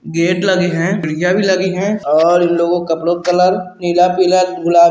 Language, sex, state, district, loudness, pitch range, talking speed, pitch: Hindi, female, Bihar, Saran, -14 LUFS, 170-185 Hz, 210 wpm, 180 Hz